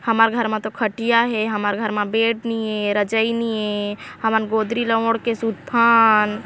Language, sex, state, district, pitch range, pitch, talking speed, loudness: Chhattisgarhi, female, Chhattisgarh, Korba, 215-230 Hz, 225 Hz, 195 wpm, -19 LUFS